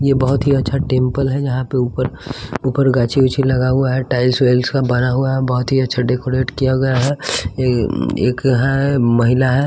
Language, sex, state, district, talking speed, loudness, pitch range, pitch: Hindi, male, Bihar, West Champaran, 210 wpm, -16 LUFS, 125-135 Hz, 130 Hz